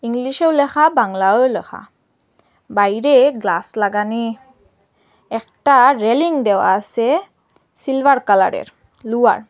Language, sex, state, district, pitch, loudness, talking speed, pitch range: Bengali, female, Assam, Hailakandi, 240 Hz, -15 LUFS, 95 wpm, 210-275 Hz